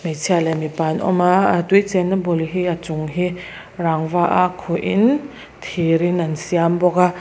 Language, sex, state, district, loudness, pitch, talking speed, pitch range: Mizo, female, Mizoram, Aizawl, -18 LUFS, 175 Hz, 210 wpm, 165-185 Hz